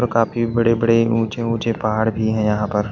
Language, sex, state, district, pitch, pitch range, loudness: Hindi, male, Odisha, Malkangiri, 115 Hz, 110-115 Hz, -19 LUFS